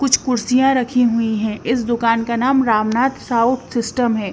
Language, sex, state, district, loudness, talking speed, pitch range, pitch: Hindi, female, Bihar, West Champaran, -17 LUFS, 180 wpm, 230-255 Hz, 235 Hz